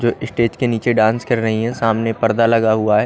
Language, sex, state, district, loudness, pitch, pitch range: Hindi, male, Haryana, Rohtak, -17 LUFS, 115 Hz, 110-120 Hz